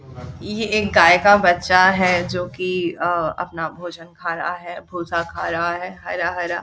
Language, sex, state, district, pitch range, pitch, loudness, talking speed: Hindi, female, Bihar, Jahanabad, 170-180 Hz, 175 Hz, -19 LUFS, 180 wpm